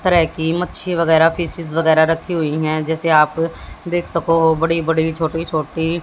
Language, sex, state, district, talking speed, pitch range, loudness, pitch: Hindi, female, Haryana, Jhajjar, 190 wpm, 160-170 Hz, -17 LUFS, 165 Hz